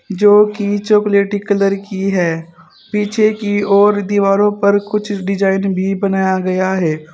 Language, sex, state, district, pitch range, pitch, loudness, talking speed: Hindi, female, Uttar Pradesh, Saharanpur, 190-205 Hz, 200 Hz, -14 LUFS, 145 wpm